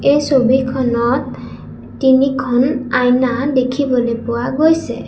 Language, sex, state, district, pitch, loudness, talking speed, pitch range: Assamese, female, Assam, Sonitpur, 255 Hz, -15 LUFS, 85 wpm, 245-275 Hz